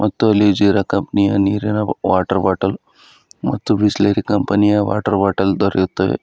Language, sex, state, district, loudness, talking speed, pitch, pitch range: Kannada, male, Karnataka, Bidar, -16 LUFS, 145 wpm, 100 Hz, 95-105 Hz